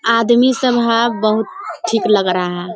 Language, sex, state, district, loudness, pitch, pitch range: Hindi, female, Bihar, Sitamarhi, -15 LUFS, 230 Hz, 215-240 Hz